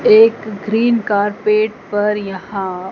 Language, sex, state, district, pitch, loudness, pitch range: Hindi, female, Madhya Pradesh, Dhar, 210 Hz, -16 LUFS, 200-220 Hz